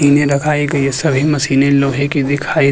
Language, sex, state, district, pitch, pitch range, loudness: Hindi, male, Uttarakhand, Tehri Garhwal, 140 Hz, 140-145 Hz, -14 LUFS